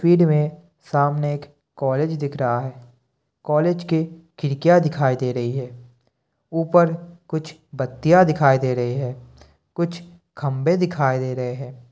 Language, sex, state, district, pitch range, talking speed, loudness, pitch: Hindi, male, Bihar, Kishanganj, 130-165 Hz, 140 wpm, -21 LUFS, 145 Hz